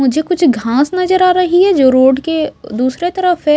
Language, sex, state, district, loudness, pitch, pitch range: Hindi, female, Maharashtra, Mumbai Suburban, -12 LUFS, 310 Hz, 265-360 Hz